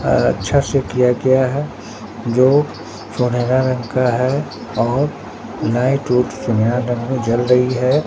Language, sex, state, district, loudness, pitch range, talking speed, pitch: Hindi, male, Bihar, Katihar, -17 LUFS, 115-130 Hz, 125 wpm, 125 Hz